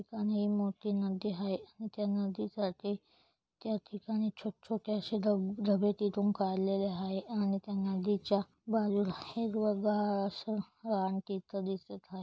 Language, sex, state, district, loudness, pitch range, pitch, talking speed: Marathi, female, Maharashtra, Solapur, -35 LUFS, 195-210 Hz, 205 Hz, 110 wpm